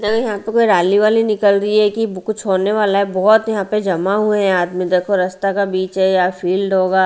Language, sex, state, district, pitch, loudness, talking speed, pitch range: Hindi, female, Haryana, Rohtak, 200 Hz, -16 LUFS, 240 wpm, 185-215 Hz